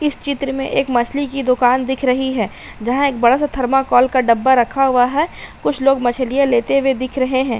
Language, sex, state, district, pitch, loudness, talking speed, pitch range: Hindi, female, Uttar Pradesh, Hamirpur, 260 Hz, -16 LUFS, 215 wpm, 245-275 Hz